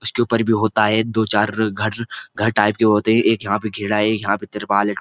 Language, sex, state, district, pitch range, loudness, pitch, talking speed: Hindi, male, Uttarakhand, Uttarkashi, 105-110 Hz, -18 LUFS, 110 Hz, 250 wpm